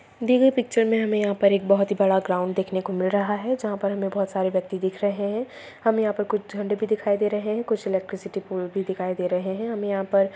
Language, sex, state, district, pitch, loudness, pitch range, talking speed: Hindi, female, Bihar, Gaya, 200 Hz, -24 LUFS, 190-215 Hz, 270 wpm